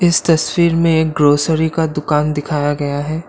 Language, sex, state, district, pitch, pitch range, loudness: Hindi, male, Assam, Kamrup Metropolitan, 155 Hz, 150-165 Hz, -15 LUFS